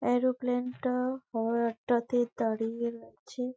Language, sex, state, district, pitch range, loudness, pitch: Bengali, female, West Bengal, Malda, 235-250 Hz, -31 LUFS, 245 Hz